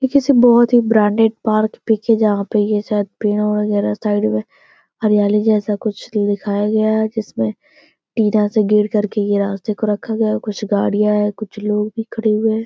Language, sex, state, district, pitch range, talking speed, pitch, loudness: Hindi, female, Bihar, Gopalganj, 210-220 Hz, 190 wpm, 210 Hz, -17 LUFS